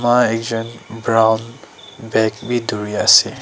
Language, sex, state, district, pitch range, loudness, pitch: Nagamese, male, Nagaland, Dimapur, 110-115 Hz, -17 LUFS, 115 Hz